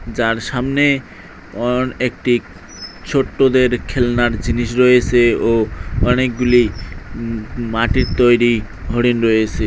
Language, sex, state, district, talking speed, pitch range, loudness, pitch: Bengali, male, West Bengal, Cooch Behar, 95 wpm, 110-125 Hz, -16 LUFS, 120 Hz